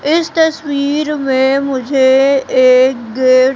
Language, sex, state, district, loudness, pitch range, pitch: Hindi, female, Madhya Pradesh, Katni, -12 LUFS, 260-290 Hz, 270 Hz